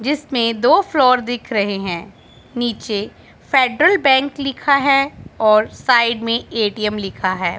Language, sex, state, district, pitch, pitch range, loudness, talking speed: Hindi, female, Punjab, Pathankot, 240 Hz, 210-275 Hz, -17 LUFS, 135 wpm